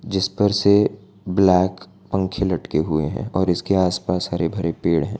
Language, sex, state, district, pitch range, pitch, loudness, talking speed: Hindi, male, Gujarat, Valsad, 90-100 Hz, 95 Hz, -20 LUFS, 175 wpm